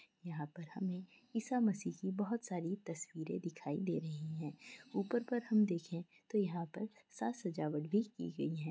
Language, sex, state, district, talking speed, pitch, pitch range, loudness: Hindi, female, Chhattisgarh, Korba, 180 wpm, 180 Hz, 165-215 Hz, -40 LUFS